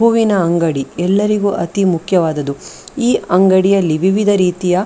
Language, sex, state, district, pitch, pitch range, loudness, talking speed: Kannada, female, Karnataka, Dakshina Kannada, 185 Hz, 170-200 Hz, -14 LUFS, 125 wpm